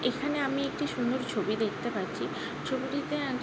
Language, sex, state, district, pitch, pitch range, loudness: Bengali, female, West Bengal, Jhargram, 265 Hz, 245-280 Hz, -32 LUFS